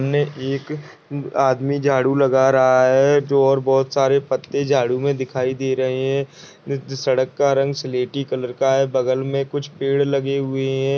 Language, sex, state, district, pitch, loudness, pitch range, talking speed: Hindi, male, Bihar, Purnia, 135 Hz, -19 LUFS, 130-140 Hz, 175 wpm